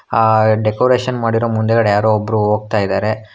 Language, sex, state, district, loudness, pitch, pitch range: Kannada, male, Karnataka, Bangalore, -15 LUFS, 110 Hz, 105-115 Hz